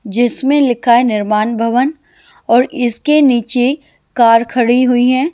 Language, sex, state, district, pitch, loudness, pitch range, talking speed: Hindi, female, Himachal Pradesh, Shimla, 245 Hz, -12 LUFS, 235-265 Hz, 135 wpm